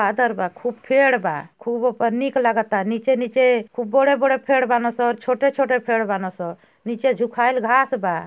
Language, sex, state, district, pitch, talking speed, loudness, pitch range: Bhojpuri, female, Uttar Pradesh, Ghazipur, 240 Hz, 160 wpm, -20 LUFS, 225-260 Hz